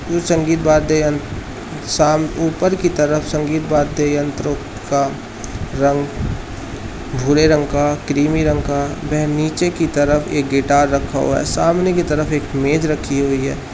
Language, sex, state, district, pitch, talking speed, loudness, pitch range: Hindi, male, Uttar Pradesh, Shamli, 150 Hz, 155 wpm, -17 LUFS, 140-155 Hz